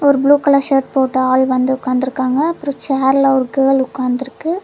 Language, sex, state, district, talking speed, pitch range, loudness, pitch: Tamil, female, Tamil Nadu, Kanyakumari, 170 wpm, 260-280 Hz, -15 LUFS, 270 Hz